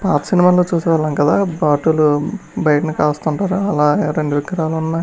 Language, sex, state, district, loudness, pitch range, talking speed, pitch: Telugu, male, Andhra Pradesh, Krishna, -16 LUFS, 150-180 Hz, 155 wpm, 160 Hz